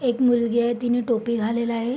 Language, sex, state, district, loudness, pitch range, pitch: Marathi, female, Maharashtra, Sindhudurg, -22 LUFS, 235-245 Hz, 235 Hz